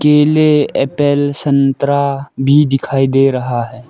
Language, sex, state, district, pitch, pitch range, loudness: Hindi, male, Arunachal Pradesh, Lower Dibang Valley, 140 Hz, 135-145 Hz, -13 LUFS